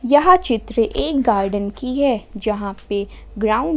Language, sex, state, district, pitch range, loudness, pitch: Hindi, female, Jharkhand, Ranchi, 205-270 Hz, -19 LUFS, 225 Hz